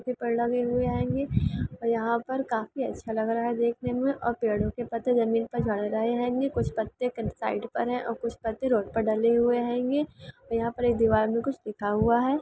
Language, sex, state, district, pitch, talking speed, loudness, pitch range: Hindi, female, Bihar, Gopalganj, 235 Hz, 220 wpm, -27 LUFS, 225-245 Hz